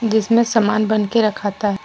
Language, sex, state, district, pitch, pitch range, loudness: Hindi, female, Jharkhand, Deoghar, 215 Hz, 210-225 Hz, -17 LUFS